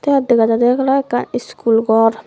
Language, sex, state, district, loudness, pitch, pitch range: Chakma, female, Tripura, Dhalai, -15 LUFS, 235 Hz, 225-270 Hz